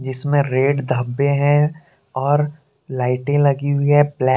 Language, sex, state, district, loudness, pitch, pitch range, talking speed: Hindi, male, Jharkhand, Deoghar, -18 LUFS, 140 Hz, 130-145 Hz, 125 wpm